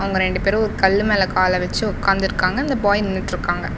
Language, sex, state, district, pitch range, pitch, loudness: Tamil, female, Tamil Nadu, Namakkal, 185-205 Hz, 195 Hz, -19 LUFS